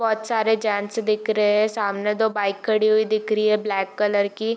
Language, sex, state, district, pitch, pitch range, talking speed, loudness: Hindi, female, Bihar, Darbhanga, 215 Hz, 205-220 Hz, 225 wpm, -21 LUFS